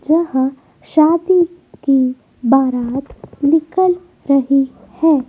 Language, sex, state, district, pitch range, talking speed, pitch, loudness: Hindi, female, Madhya Pradesh, Dhar, 260-325 Hz, 80 wpm, 275 Hz, -16 LUFS